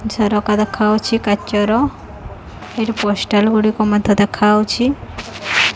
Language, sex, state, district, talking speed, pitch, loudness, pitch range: Odia, female, Odisha, Khordha, 115 wpm, 210 Hz, -16 LUFS, 210-220 Hz